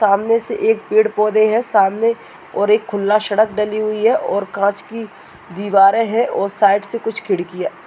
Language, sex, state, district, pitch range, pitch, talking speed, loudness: Hindi, female, Uttar Pradesh, Muzaffarnagar, 200-225 Hz, 215 Hz, 190 wpm, -16 LUFS